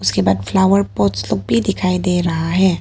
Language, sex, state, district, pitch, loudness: Hindi, female, Arunachal Pradesh, Papum Pare, 180 Hz, -16 LUFS